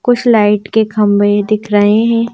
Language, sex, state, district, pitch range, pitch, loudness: Hindi, female, Madhya Pradesh, Bhopal, 205-230 Hz, 215 Hz, -11 LUFS